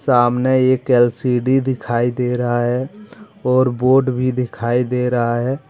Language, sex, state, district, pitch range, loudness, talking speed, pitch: Hindi, male, Jharkhand, Deoghar, 120-130 Hz, -17 LUFS, 145 wpm, 125 Hz